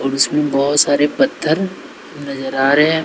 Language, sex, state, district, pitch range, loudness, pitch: Hindi, male, Bihar, West Champaran, 135-155 Hz, -16 LUFS, 145 Hz